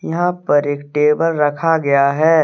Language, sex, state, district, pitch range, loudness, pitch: Hindi, male, Jharkhand, Deoghar, 145-165 Hz, -16 LUFS, 150 Hz